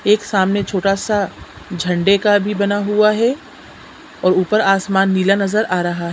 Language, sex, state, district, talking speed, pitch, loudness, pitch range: Hindi, female, Chhattisgarh, Sukma, 175 wpm, 200 Hz, -16 LUFS, 190-210 Hz